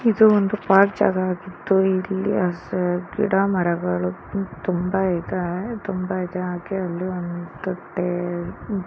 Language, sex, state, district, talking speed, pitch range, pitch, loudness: Kannada, female, Karnataka, Chamarajanagar, 110 wpm, 180-195 Hz, 185 Hz, -22 LUFS